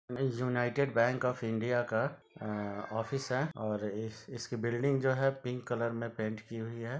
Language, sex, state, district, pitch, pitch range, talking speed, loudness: Hindi, male, Bihar, Sitamarhi, 120 Hz, 110-130 Hz, 190 wpm, -34 LUFS